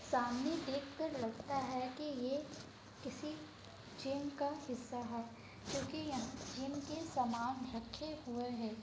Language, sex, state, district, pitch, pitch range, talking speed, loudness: Hindi, female, Bihar, Kishanganj, 270 Hz, 245-290 Hz, 130 wpm, -42 LUFS